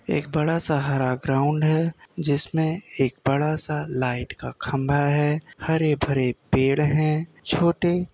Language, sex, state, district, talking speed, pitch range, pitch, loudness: Hindi, male, Uttar Pradesh, Gorakhpur, 145 wpm, 135-160 Hz, 150 Hz, -24 LUFS